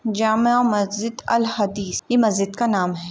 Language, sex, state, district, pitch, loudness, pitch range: Hindi, female, Maharashtra, Aurangabad, 220 Hz, -20 LUFS, 200-230 Hz